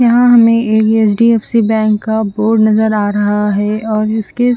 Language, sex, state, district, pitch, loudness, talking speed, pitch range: Hindi, female, Chandigarh, Chandigarh, 220 Hz, -12 LUFS, 155 wpm, 215-230 Hz